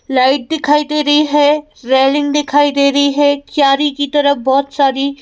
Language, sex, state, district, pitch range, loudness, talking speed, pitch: Hindi, female, Madhya Pradesh, Bhopal, 275-295 Hz, -13 LUFS, 170 wpm, 285 Hz